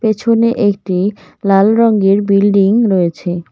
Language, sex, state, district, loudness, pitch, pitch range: Bengali, female, West Bengal, Cooch Behar, -13 LUFS, 200 Hz, 195-220 Hz